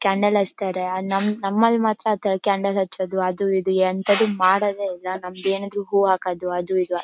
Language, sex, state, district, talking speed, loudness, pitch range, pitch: Kannada, female, Karnataka, Bellary, 155 wpm, -21 LUFS, 185-205 Hz, 195 Hz